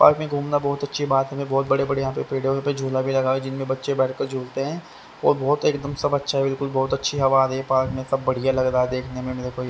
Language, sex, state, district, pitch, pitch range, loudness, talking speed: Hindi, male, Haryana, Rohtak, 135 Hz, 130-140 Hz, -23 LUFS, 315 wpm